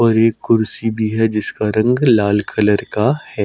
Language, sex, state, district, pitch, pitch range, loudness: Hindi, male, Chhattisgarh, Sukma, 110 Hz, 105-115 Hz, -16 LUFS